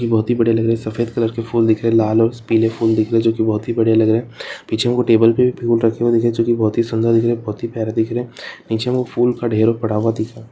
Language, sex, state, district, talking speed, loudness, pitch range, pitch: Hindi, female, Rajasthan, Churu, 350 wpm, -17 LUFS, 110-120 Hz, 115 Hz